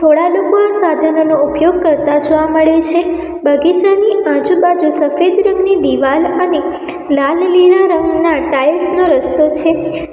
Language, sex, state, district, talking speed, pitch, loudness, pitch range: Gujarati, female, Gujarat, Valsad, 125 wpm, 335 Hz, -12 LUFS, 310-360 Hz